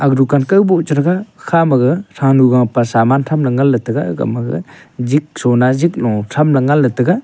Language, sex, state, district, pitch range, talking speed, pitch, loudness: Wancho, male, Arunachal Pradesh, Longding, 125-160 Hz, 225 wpm, 140 Hz, -14 LUFS